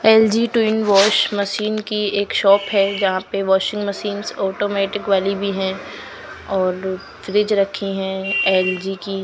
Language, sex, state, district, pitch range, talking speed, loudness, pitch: Hindi, female, Maharashtra, Washim, 195-210 Hz, 155 wpm, -18 LUFS, 200 Hz